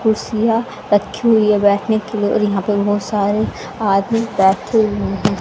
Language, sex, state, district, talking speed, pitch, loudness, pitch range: Hindi, female, Haryana, Charkhi Dadri, 175 wpm, 210 Hz, -16 LUFS, 200-220 Hz